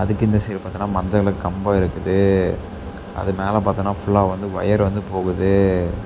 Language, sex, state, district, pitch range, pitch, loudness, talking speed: Tamil, male, Tamil Nadu, Namakkal, 95-100 Hz, 100 Hz, -20 LUFS, 160 wpm